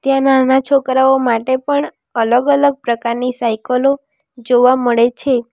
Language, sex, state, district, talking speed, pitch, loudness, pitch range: Gujarati, female, Gujarat, Valsad, 120 wpm, 260 Hz, -14 LUFS, 240-270 Hz